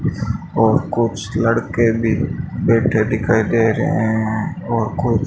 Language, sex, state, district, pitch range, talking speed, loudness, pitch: Hindi, male, Rajasthan, Bikaner, 110-115 Hz, 125 wpm, -18 LUFS, 115 Hz